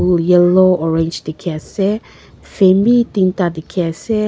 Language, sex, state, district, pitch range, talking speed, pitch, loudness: Nagamese, female, Nagaland, Kohima, 165-195 Hz, 125 wpm, 180 Hz, -15 LUFS